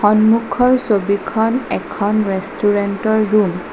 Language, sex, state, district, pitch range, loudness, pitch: Assamese, female, Assam, Sonitpur, 200-220 Hz, -16 LUFS, 210 Hz